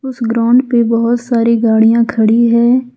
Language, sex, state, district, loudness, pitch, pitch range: Hindi, female, Jharkhand, Ranchi, -11 LUFS, 235 Hz, 230-245 Hz